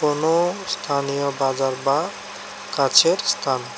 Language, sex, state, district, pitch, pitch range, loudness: Bengali, male, Tripura, West Tripura, 140 Hz, 135-165 Hz, -21 LUFS